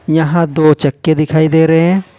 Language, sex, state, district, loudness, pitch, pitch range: Hindi, male, Jharkhand, Ranchi, -11 LUFS, 160 Hz, 155-165 Hz